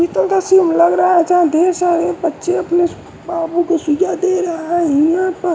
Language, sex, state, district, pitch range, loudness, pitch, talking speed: Hindi, male, Bihar, West Champaran, 335-360 Hz, -15 LUFS, 345 Hz, 160 wpm